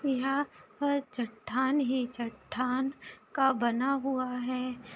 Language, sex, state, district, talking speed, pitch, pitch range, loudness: Hindi, female, Bihar, Saharsa, 110 wpm, 255 Hz, 245-275 Hz, -31 LUFS